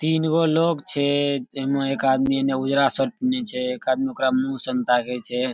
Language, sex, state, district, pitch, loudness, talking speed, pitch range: Maithili, male, Bihar, Darbhanga, 135 Hz, -22 LUFS, 205 wpm, 130-160 Hz